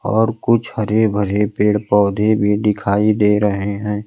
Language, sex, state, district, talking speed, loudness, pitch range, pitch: Hindi, male, Bihar, Kaimur, 160 wpm, -16 LUFS, 105-110 Hz, 105 Hz